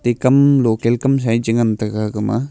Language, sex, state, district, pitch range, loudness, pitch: Wancho, male, Arunachal Pradesh, Longding, 110-130 Hz, -16 LUFS, 120 Hz